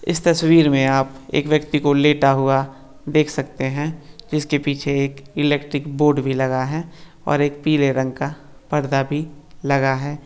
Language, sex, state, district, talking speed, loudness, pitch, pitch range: Hindi, male, Maharashtra, Nagpur, 170 wpm, -19 LUFS, 145 Hz, 135-150 Hz